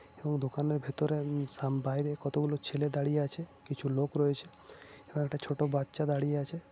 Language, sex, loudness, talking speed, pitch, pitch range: Odia, male, -33 LUFS, 160 wpm, 145 Hz, 140-150 Hz